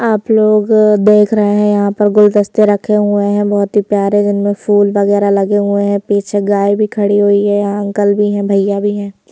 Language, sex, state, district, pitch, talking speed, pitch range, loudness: Hindi, female, Madhya Pradesh, Bhopal, 205 Hz, 210 wpm, 200-210 Hz, -12 LUFS